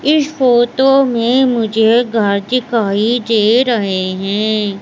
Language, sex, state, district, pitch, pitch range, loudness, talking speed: Hindi, female, Madhya Pradesh, Katni, 230 Hz, 210-250 Hz, -13 LUFS, 110 wpm